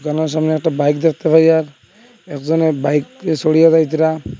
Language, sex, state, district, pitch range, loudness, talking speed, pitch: Bengali, male, Assam, Hailakandi, 150-160 Hz, -15 LUFS, 135 wpm, 160 Hz